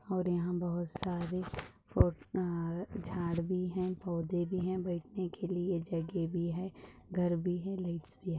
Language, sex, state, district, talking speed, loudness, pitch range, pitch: Hindi, female, Maharashtra, Dhule, 170 wpm, -36 LUFS, 170-185 Hz, 175 Hz